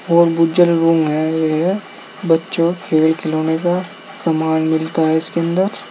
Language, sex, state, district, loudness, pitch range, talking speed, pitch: Hindi, male, Uttar Pradesh, Saharanpur, -16 LUFS, 160-175 Hz, 140 wpm, 165 Hz